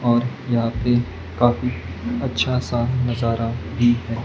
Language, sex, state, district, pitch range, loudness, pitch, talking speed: Hindi, male, Maharashtra, Gondia, 115-120 Hz, -21 LUFS, 120 Hz, 125 wpm